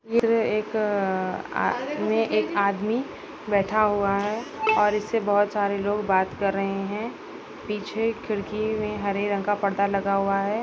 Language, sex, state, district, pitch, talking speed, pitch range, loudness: Hindi, female, Chhattisgarh, Balrampur, 205 Hz, 160 wpm, 200-215 Hz, -25 LUFS